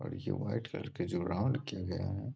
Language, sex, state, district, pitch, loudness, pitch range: Hindi, male, Bihar, Samastipur, 100 Hz, -37 LUFS, 90-130 Hz